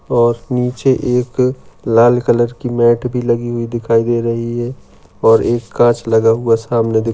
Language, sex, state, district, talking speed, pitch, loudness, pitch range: Hindi, male, Maharashtra, Sindhudurg, 195 wpm, 120 Hz, -15 LUFS, 115-125 Hz